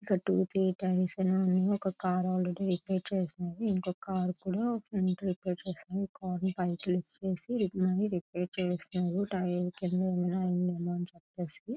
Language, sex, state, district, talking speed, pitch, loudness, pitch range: Telugu, female, Andhra Pradesh, Chittoor, 75 wpm, 185 Hz, -32 LUFS, 180-190 Hz